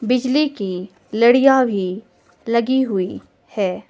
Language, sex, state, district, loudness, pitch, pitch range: Hindi, female, Himachal Pradesh, Shimla, -18 LUFS, 230 Hz, 190-255 Hz